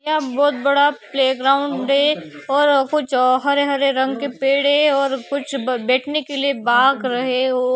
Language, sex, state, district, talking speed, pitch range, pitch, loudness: Hindi, female, Maharashtra, Aurangabad, 175 wpm, 260-285 Hz, 275 Hz, -18 LUFS